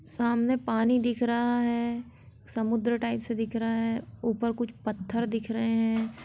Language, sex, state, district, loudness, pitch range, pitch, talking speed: Hindi, female, Jharkhand, Sahebganj, -28 LUFS, 225-235 Hz, 230 Hz, 165 wpm